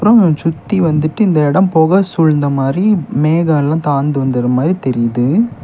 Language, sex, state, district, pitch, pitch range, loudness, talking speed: Tamil, male, Tamil Nadu, Kanyakumari, 155 Hz, 140-185 Hz, -13 LUFS, 140 wpm